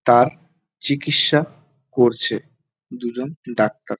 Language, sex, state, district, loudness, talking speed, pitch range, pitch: Bengali, male, West Bengal, North 24 Parganas, -20 LUFS, 75 wpm, 125-155 Hz, 140 Hz